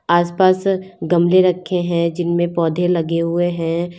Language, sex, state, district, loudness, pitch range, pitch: Hindi, female, Uttar Pradesh, Lalitpur, -17 LUFS, 170-180 Hz, 175 Hz